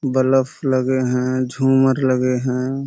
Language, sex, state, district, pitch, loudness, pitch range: Hindi, male, Uttar Pradesh, Budaun, 130 Hz, -18 LUFS, 130-135 Hz